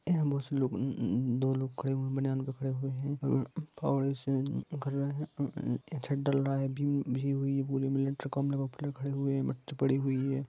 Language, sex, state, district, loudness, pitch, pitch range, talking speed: Hindi, male, Jharkhand, Sahebganj, -33 LUFS, 135 Hz, 135-140 Hz, 45 wpm